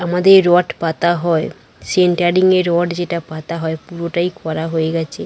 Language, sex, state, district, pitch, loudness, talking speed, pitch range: Bengali, female, West Bengal, Dakshin Dinajpur, 170 Hz, -16 LUFS, 160 wpm, 165-175 Hz